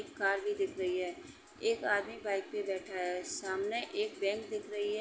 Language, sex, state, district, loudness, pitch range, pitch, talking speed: Hindi, female, Uttar Pradesh, Etah, -36 LUFS, 195-230 Hz, 205 Hz, 215 wpm